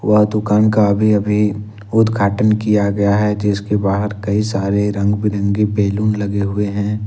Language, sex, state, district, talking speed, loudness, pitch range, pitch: Hindi, male, Jharkhand, Ranchi, 160 wpm, -16 LUFS, 100-105 Hz, 105 Hz